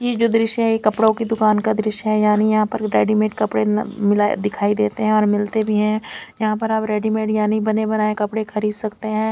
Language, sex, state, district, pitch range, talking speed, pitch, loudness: Hindi, female, Chandigarh, Chandigarh, 210-220 Hz, 220 wpm, 215 Hz, -19 LUFS